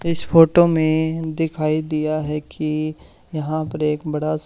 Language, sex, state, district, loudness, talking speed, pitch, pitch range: Hindi, male, Haryana, Charkhi Dadri, -19 LUFS, 160 wpm, 155 Hz, 155-160 Hz